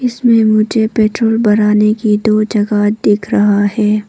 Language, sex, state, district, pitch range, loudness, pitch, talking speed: Hindi, female, Arunachal Pradesh, Papum Pare, 210-220 Hz, -12 LUFS, 215 Hz, 145 wpm